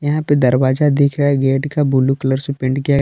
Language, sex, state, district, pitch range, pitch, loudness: Hindi, male, Jharkhand, Palamu, 130-145 Hz, 140 Hz, -16 LUFS